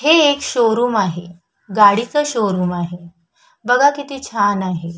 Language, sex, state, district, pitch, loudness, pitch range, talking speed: Marathi, female, Maharashtra, Chandrapur, 210 Hz, -16 LUFS, 175-260 Hz, 135 wpm